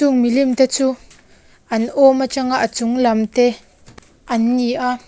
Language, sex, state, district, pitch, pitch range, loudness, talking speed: Mizo, female, Mizoram, Aizawl, 250 Hz, 235-265 Hz, -17 LUFS, 175 wpm